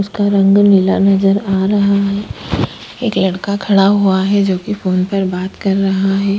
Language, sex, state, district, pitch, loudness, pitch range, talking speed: Hindi, female, Goa, North and South Goa, 195 Hz, -14 LUFS, 190-200 Hz, 190 wpm